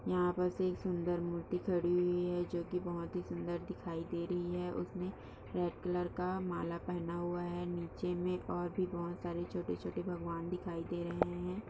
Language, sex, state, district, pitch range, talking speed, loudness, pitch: Hindi, female, Bihar, Kishanganj, 175-180 Hz, 195 wpm, -38 LUFS, 175 Hz